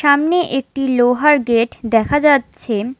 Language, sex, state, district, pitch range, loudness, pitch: Bengali, female, West Bengal, Alipurduar, 235-290 Hz, -15 LUFS, 265 Hz